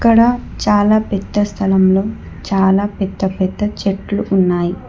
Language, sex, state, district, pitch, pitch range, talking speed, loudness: Telugu, female, Telangana, Hyderabad, 200 Hz, 190-210 Hz, 110 wpm, -16 LUFS